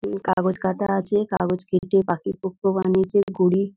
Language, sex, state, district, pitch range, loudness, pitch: Bengali, female, West Bengal, Dakshin Dinajpur, 185-195 Hz, -22 LUFS, 190 Hz